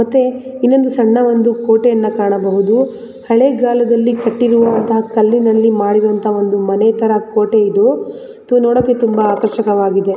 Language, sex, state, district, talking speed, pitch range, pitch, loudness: Kannada, female, Karnataka, Raichur, 120 wpm, 215-245 Hz, 225 Hz, -13 LUFS